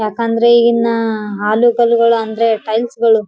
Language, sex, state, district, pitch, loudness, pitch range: Kannada, female, Karnataka, Raichur, 230 Hz, -13 LUFS, 220-235 Hz